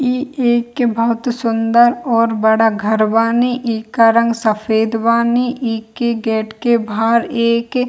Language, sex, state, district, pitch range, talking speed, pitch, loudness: Hindi, female, Bihar, Kishanganj, 225-240 Hz, 135 wpm, 230 Hz, -15 LUFS